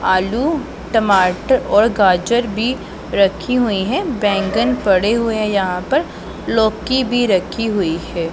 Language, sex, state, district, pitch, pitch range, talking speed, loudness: Hindi, female, Punjab, Pathankot, 215 Hz, 190-245 Hz, 130 wpm, -17 LUFS